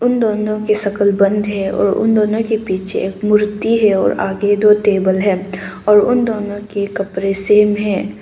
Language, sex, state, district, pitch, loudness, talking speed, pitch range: Hindi, female, Arunachal Pradesh, Papum Pare, 205 Hz, -15 LUFS, 180 wpm, 195-215 Hz